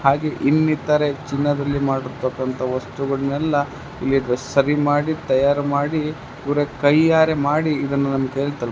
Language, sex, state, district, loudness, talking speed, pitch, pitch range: Kannada, male, Karnataka, Chamarajanagar, -20 LUFS, 130 wpm, 140 Hz, 135-150 Hz